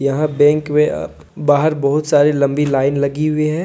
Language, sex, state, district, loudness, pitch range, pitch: Hindi, male, Jharkhand, Deoghar, -15 LUFS, 140-150 Hz, 145 Hz